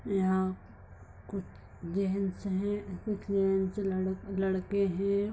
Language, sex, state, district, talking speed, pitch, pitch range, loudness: Hindi, female, Bihar, Gopalganj, 65 wpm, 195 Hz, 185-200 Hz, -32 LUFS